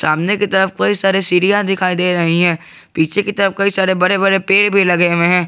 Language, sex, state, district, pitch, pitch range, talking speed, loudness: Hindi, male, Jharkhand, Garhwa, 190 Hz, 175-195 Hz, 240 wpm, -14 LUFS